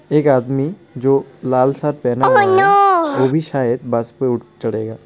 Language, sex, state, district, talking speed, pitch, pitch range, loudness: Hindi, male, West Bengal, Alipurduar, 180 wpm, 135 Hz, 125-155 Hz, -16 LUFS